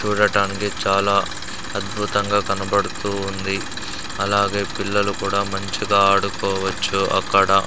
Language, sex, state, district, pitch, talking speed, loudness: Telugu, male, Andhra Pradesh, Sri Satya Sai, 100 Hz, 95 wpm, -20 LUFS